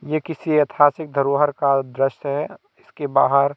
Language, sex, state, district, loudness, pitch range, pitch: Hindi, male, Madhya Pradesh, Katni, -20 LUFS, 140-155 Hz, 145 Hz